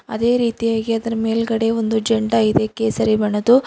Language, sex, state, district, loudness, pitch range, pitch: Kannada, female, Karnataka, Bidar, -18 LUFS, 220-230 Hz, 225 Hz